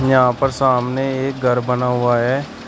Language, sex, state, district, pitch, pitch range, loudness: Hindi, male, Uttar Pradesh, Shamli, 130 Hz, 125-135 Hz, -17 LUFS